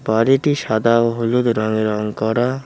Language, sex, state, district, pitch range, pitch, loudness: Bengali, male, West Bengal, Cooch Behar, 110-125 Hz, 115 Hz, -17 LUFS